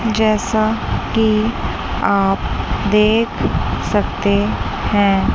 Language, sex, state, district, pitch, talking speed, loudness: Hindi, female, Chandigarh, Chandigarh, 200 Hz, 65 wpm, -17 LUFS